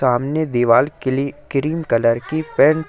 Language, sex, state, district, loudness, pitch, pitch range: Hindi, male, Jharkhand, Ranchi, -18 LUFS, 135 Hz, 120-155 Hz